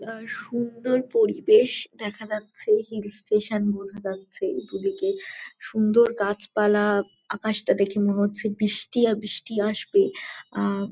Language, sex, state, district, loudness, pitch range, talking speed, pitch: Bengali, female, West Bengal, Jalpaiguri, -25 LUFS, 205-245 Hz, 120 wpm, 215 Hz